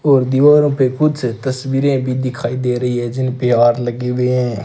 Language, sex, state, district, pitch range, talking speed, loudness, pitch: Hindi, male, Rajasthan, Bikaner, 125-135 Hz, 195 wpm, -16 LUFS, 125 Hz